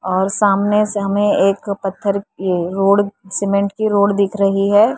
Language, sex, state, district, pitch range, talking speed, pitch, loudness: Hindi, female, Maharashtra, Mumbai Suburban, 195-205 Hz, 170 wpm, 200 Hz, -16 LUFS